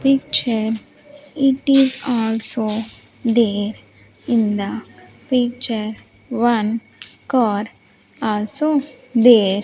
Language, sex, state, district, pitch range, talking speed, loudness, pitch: English, female, Andhra Pradesh, Sri Satya Sai, 220-265 Hz, 75 wpm, -19 LUFS, 235 Hz